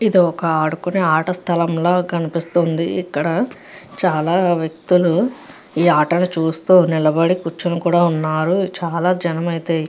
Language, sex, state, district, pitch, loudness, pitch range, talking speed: Telugu, female, Andhra Pradesh, Chittoor, 170 Hz, -18 LUFS, 165-180 Hz, 120 wpm